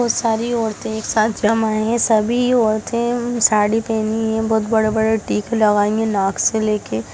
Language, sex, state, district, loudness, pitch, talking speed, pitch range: Hindi, female, Bihar, Sitamarhi, -18 LUFS, 220 Hz, 175 wpm, 215-230 Hz